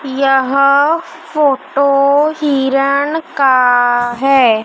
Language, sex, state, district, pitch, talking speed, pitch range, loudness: Hindi, male, Madhya Pradesh, Dhar, 275 Hz, 65 wpm, 265-290 Hz, -12 LUFS